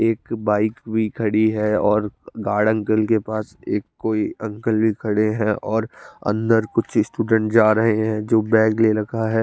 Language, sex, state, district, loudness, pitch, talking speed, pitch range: Hindi, male, Chandigarh, Chandigarh, -20 LUFS, 110 Hz, 180 wpm, 105-110 Hz